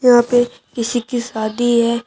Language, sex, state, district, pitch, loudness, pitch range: Hindi, female, Uttar Pradesh, Shamli, 240 Hz, -17 LUFS, 235-245 Hz